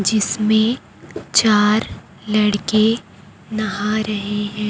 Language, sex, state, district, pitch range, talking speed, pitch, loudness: Hindi, female, Chhattisgarh, Raipur, 210-220 Hz, 75 wpm, 215 Hz, -18 LUFS